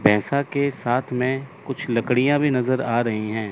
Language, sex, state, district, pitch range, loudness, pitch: Hindi, male, Chandigarh, Chandigarh, 115-140 Hz, -22 LUFS, 125 Hz